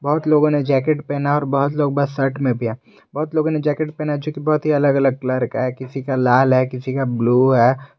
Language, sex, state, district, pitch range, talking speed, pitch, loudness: Hindi, male, Jharkhand, Garhwa, 130-150 Hz, 265 wpm, 140 Hz, -18 LUFS